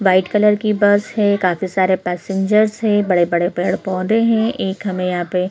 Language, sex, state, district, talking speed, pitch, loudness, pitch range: Hindi, female, Chhattisgarh, Korba, 220 wpm, 190 Hz, -17 LUFS, 185-210 Hz